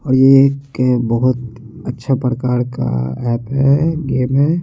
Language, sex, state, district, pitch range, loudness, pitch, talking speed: Hindi, male, Chandigarh, Chandigarh, 120-135 Hz, -15 LUFS, 130 Hz, 145 wpm